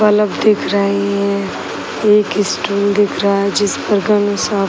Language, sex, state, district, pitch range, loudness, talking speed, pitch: Hindi, female, Uttar Pradesh, Gorakhpur, 200-210 Hz, -15 LUFS, 140 wpm, 205 Hz